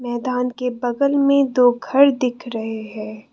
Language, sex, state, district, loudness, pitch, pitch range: Hindi, female, Assam, Kamrup Metropolitan, -19 LUFS, 250 Hz, 240-265 Hz